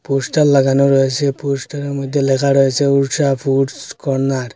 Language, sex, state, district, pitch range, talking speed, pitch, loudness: Bengali, male, Assam, Hailakandi, 135-140 Hz, 145 wpm, 135 Hz, -16 LUFS